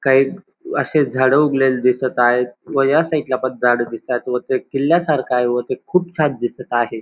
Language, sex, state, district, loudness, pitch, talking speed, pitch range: Marathi, male, Maharashtra, Dhule, -18 LUFS, 130 Hz, 195 wpm, 125-140 Hz